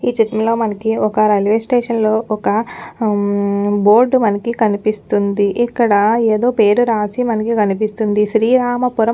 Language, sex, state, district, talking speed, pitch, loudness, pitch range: Telugu, female, Telangana, Nalgonda, 120 wpm, 220 Hz, -15 LUFS, 210-230 Hz